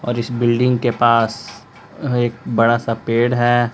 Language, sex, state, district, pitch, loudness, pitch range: Hindi, male, Jharkhand, Palamu, 120 Hz, -17 LUFS, 115-120 Hz